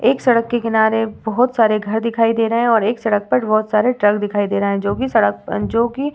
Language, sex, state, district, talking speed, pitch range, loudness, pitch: Hindi, female, Uttar Pradesh, Varanasi, 275 wpm, 210-235 Hz, -17 LUFS, 225 Hz